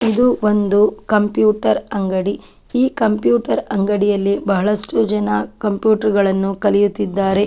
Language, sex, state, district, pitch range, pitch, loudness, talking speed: Kannada, female, Karnataka, Chamarajanagar, 195-210 Hz, 205 Hz, -17 LUFS, 105 wpm